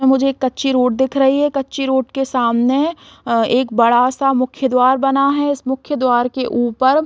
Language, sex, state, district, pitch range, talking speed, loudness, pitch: Hindi, female, Chhattisgarh, Raigarh, 250-275 Hz, 195 wpm, -16 LUFS, 265 Hz